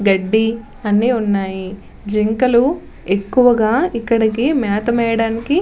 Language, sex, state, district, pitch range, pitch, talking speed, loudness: Telugu, female, Andhra Pradesh, Visakhapatnam, 205-240 Hz, 225 Hz, 95 wpm, -16 LUFS